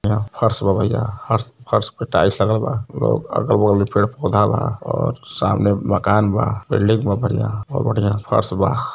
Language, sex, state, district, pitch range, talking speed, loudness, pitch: Hindi, male, Uttar Pradesh, Varanasi, 100-115 Hz, 180 wpm, -19 LUFS, 105 Hz